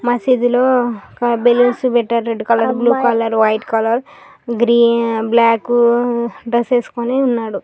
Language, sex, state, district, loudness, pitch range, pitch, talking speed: Telugu, female, Telangana, Karimnagar, -15 LUFS, 230-245 Hz, 235 Hz, 125 wpm